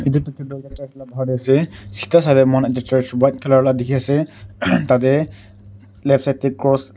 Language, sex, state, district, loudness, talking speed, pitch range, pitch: Nagamese, male, Nagaland, Kohima, -17 LUFS, 190 wpm, 125-140 Hz, 135 Hz